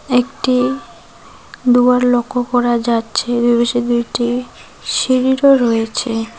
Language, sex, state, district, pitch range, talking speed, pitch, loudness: Bengali, female, West Bengal, Cooch Behar, 235-250 Hz, 85 wpm, 245 Hz, -15 LUFS